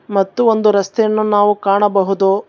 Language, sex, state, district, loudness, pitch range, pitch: Kannada, male, Karnataka, Bangalore, -14 LUFS, 195-215 Hz, 205 Hz